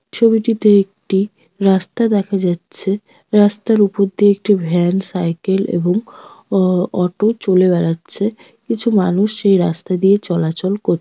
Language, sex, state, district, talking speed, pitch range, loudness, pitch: Bengali, female, West Bengal, North 24 Parganas, 130 wpm, 180-215 Hz, -16 LUFS, 195 Hz